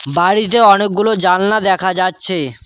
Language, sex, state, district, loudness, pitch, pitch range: Bengali, male, West Bengal, Cooch Behar, -13 LUFS, 190 Hz, 180-205 Hz